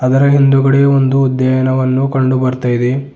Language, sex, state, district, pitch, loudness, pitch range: Kannada, male, Karnataka, Bidar, 130 Hz, -12 LUFS, 130-135 Hz